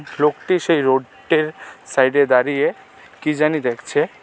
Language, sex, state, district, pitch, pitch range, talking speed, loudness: Bengali, male, Tripura, West Tripura, 145 Hz, 130-155 Hz, 130 wpm, -19 LUFS